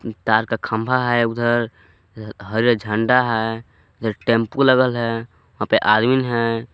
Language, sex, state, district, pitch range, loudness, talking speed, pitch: Hindi, male, Jharkhand, Palamu, 110-120 Hz, -19 LUFS, 150 wpm, 115 Hz